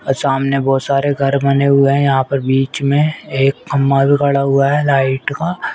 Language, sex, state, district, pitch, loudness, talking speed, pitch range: Hindi, female, Uttar Pradesh, Etah, 140 Hz, -14 LUFS, 210 wpm, 135-140 Hz